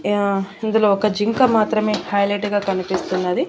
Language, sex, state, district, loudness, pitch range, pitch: Telugu, female, Andhra Pradesh, Annamaya, -19 LUFS, 195-215 Hz, 205 Hz